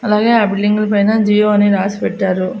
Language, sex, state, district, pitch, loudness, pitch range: Telugu, female, Andhra Pradesh, Annamaya, 205 Hz, -14 LUFS, 200-210 Hz